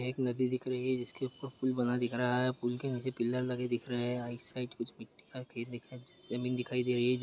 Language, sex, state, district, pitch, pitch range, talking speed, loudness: Hindi, male, Jharkhand, Jamtara, 125 Hz, 120-130 Hz, 275 wpm, -35 LUFS